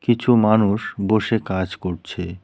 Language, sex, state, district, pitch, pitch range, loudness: Bengali, male, West Bengal, Cooch Behar, 100 Hz, 90-110 Hz, -20 LUFS